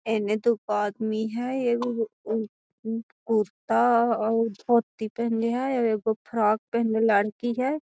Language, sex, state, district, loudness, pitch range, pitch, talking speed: Magahi, female, Bihar, Gaya, -26 LUFS, 220-235 Hz, 225 Hz, 125 wpm